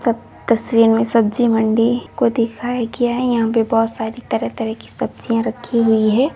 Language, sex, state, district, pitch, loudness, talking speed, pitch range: Hindi, female, Bihar, Jamui, 230 Hz, -18 LUFS, 190 wpm, 225-240 Hz